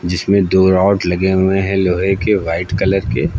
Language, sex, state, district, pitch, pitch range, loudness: Hindi, male, Uttar Pradesh, Lucknow, 95 Hz, 90-95 Hz, -15 LUFS